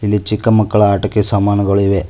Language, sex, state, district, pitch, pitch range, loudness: Kannada, male, Karnataka, Koppal, 105 Hz, 100-105 Hz, -14 LUFS